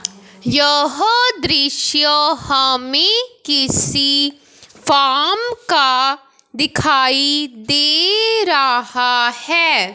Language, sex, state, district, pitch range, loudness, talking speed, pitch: Hindi, male, Punjab, Fazilka, 265-330 Hz, -14 LUFS, 60 wpm, 290 Hz